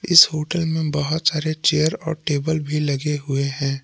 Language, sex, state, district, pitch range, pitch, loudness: Hindi, male, Jharkhand, Palamu, 145-160 Hz, 155 Hz, -20 LUFS